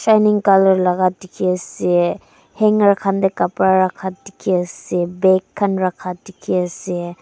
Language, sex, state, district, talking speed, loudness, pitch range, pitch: Nagamese, female, Nagaland, Dimapur, 110 wpm, -17 LUFS, 180-195 Hz, 185 Hz